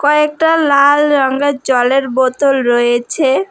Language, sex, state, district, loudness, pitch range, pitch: Bengali, female, West Bengal, Alipurduar, -12 LUFS, 255-290 Hz, 275 Hz